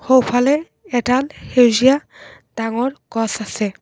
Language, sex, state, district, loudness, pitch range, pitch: Assamese, female, Assam, Kamrup Metropolitan, -18 LUFS, 225-260 Hz, 245 Hz